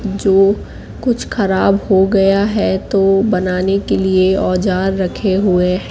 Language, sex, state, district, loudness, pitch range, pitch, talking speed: Hindi, female, Madhya Pradesh, Katni, -14 LUFS, 185-200 Hz, 195 Hz, 140 wpm